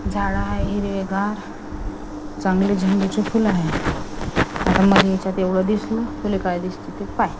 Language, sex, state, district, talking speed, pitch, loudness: Marathi, female, Maharashtra, Washim, 140 wpm, 190 Hz, -21 LUFS